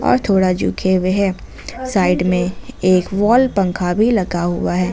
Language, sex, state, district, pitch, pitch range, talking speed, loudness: Hindi, female, Jharkhand, Ranchi, 185 Hz, 180-205 Hz, 170 wpm, -16 LUFS